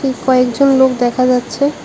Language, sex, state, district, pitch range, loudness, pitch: Bengali, female, Tripura, West Tripura, 250-270 Hz, -13 LUFS, 255 Hz